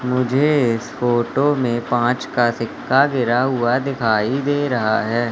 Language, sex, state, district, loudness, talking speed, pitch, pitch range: Hindi, male, Madhya Pradesh, Katni, -18 LUFS, 145 wpm, 125 Hz, 120-135 Hz